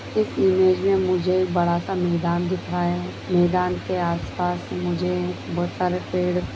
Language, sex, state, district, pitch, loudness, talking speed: Hindi, female, Bihar, Begusarai, 170 Hz, -23 LUFS, 165 wpm